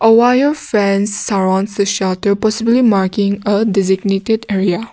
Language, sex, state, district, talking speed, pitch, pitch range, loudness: English, female, Nagaland, Kohima, 110 wpm, 205 Hz, 195-225 Hz, -14 LUFS